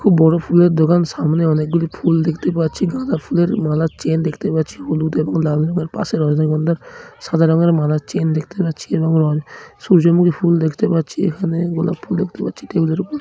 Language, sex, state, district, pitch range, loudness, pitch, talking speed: Bengali, male, West Bengal, Dakshin Dinajpur, 155-175 Hz, -17 LUFS, 165 Hz, 185 wpm